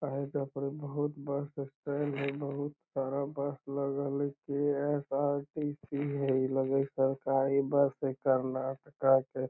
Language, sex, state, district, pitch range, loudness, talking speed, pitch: Magahi, male, Bihar, Lakhisarai, 135-145 Hz, -33 LUFS, 160 wpm, 140 Hz